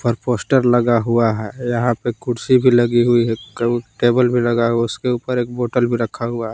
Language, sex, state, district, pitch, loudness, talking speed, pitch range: Hindi, male, Jharkhand, Palamu, 120 Hz, -17 LUFS, 230 wpm, 115-125 Hz